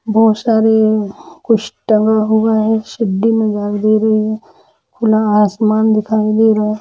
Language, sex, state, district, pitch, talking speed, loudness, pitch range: Hindi, female, Jharkhand, Jamtara, 220 Hz, 150 wpm, -14 LUFS, 215-220 Hz